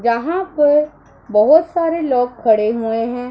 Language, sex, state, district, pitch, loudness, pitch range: Hindi, female, Punjab, Pathankot, 245 Hz, -16 LUFS, 230-315 Hz